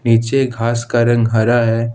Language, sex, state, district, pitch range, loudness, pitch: Hindi, male, Jharkhand, Ranchi, 115-120 Hz, -15 LUFS, 115 Hz